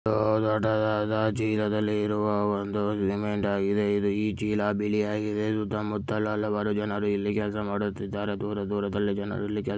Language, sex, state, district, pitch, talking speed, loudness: Kannada, male, Karnataka, Mysore, 105 Hz, 130 wpm, -27 LUFS